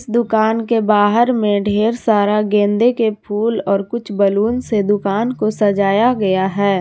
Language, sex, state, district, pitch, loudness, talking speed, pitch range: Hindi, female, Jharkhand, Garhwa, 210 Hz, -16 LUFS, 160 wpm, 205-230 Hz